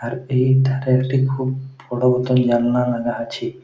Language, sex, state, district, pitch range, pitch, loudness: Bengali, male, West Bengal, Jhargram, 125-130 Hz, 130 Hz, -19 LUFS